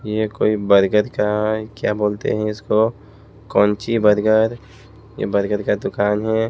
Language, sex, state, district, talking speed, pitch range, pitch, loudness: Hindi, male, Haryana, Jhajjar, 140 wpm, 105-110 Hz, 105 Hz, -19 LUFS